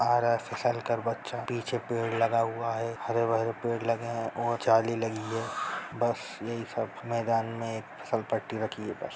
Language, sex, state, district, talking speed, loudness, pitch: Hindi, male, Bihar, Jahanabad, 195 wpm, -30 LUFS, 115 Hz